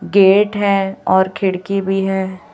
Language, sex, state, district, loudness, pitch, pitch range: Hindi, female, Chhattisgarh, Raipur, -16 LUFS, 195 Hz, 190-200 Hz